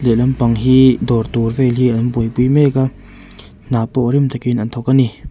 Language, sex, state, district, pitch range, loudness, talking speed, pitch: Mizo, male, Mizoram, Aizawl, 115-130 Hz, -15 LUFS, 205 wpm, 125 Hz